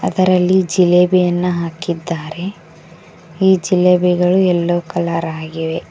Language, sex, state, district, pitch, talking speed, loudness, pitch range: Kannada, female, Karnataka, Koppal, 175 Hz, 80 wpm, -15 LUFS, 165-180 Hz